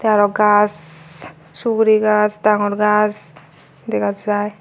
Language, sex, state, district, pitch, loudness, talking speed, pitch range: Chakma, female, Tripura, Unakoti, 210 Hz, -16 LUFS, 115 wpm, 165-210 Hz